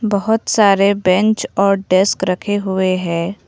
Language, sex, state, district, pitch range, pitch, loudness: Hindi, female, Assam, Kamrup Metropolitan, 185-205 Hz, 195 Hz, -15 LUFS